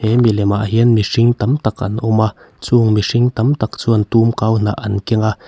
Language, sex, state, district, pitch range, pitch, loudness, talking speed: Mizo, male, Mizoram, Aizawl, 105-115 Hz, 110 Hz, -15 LUFS, 220 wpm